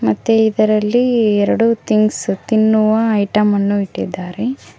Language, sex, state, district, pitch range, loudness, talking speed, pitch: Kannada, female, Karnataka, Koppal, 205-225 Hz, -15 LUFS, 100 wpm, 215 Hz